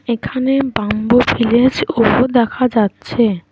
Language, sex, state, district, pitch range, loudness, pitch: Bengali, female, West Bengal, Alipurduar, 225-255 Hz, -15 LUFS, 235 Hz